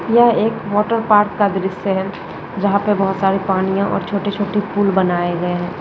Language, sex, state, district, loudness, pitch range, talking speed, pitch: Hindi, female, Rajasthan, Nagaur, -17 LUFS, 190-210 Hz, 195 wpm, 200 Hz